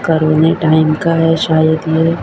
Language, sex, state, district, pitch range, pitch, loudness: Hindi, female, Maharashtra, Mumbai Suburban, 155-165 Hz, 160 Hz, -12 LUFS